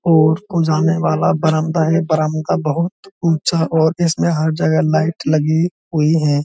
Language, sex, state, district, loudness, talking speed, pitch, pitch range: Hindi, male, Uttar Pradesh, Budaun, -16 LUFS, 160 wpm, 160 Hz, 155-165 Hz